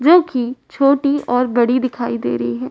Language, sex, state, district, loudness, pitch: Hindi, female, Uttar Pradesh, Varanasi, -17 LUFS, 250 Hz